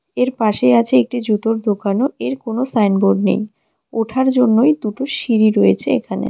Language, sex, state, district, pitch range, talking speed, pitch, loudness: Bengali, female, West Bengal, Cooch Behar, 200-250 Hz, 160 wpm, 220 Hz, -16 LUFS